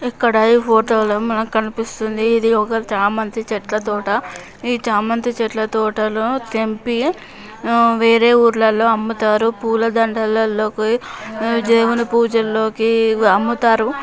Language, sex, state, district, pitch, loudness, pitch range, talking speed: Telugu, female, Andhra Pradesh, Chittoor, 225 Hz, -16 LUFS, 220-230 Hz, 105 wpm